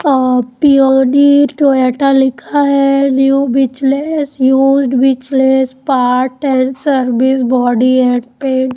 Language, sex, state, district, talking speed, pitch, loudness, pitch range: Hindi, female, Chandigarh, Chandigarh, 95 wpm, 265 Hz, -11 LUFS, 255-275 Hz